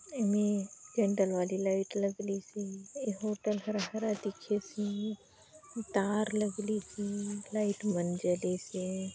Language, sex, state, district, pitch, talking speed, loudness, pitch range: Hindi, female, Chhattisgarh, Bastar, 205 Hz, 100 wpm, -34 LUFS, 195-215 Hz